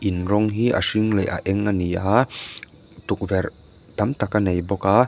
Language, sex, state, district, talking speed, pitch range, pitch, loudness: Mizo, male, Mizoram, Aizawl, 215 wpm, 95-110 Hz, 100 Hz, -22 LUFS